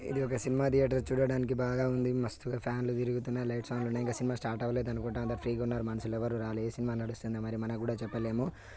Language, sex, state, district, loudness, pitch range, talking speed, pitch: Telugu, male, Telangana, Nalgonda, -34 LUFS, 115-125 Hz, 210 wpm, 120 Hz